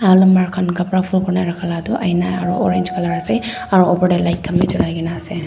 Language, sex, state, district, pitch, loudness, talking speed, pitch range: Nagamese, female, Nagaland, Dimapur, 180 Hz, -17 LUFS, 250 wpm, 175-185 Hz